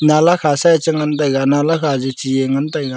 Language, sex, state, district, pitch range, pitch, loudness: Wancho, male, Arunachal Pradesh, Longding, 135-155 Hz, 150 Hz, -15 LUFS